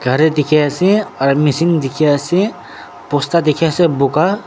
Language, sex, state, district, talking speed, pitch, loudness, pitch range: Nagamese, male, Nagaland, Dimapur, 145 wpm, 150 Hz, -14 LUFS, 140-170 Hz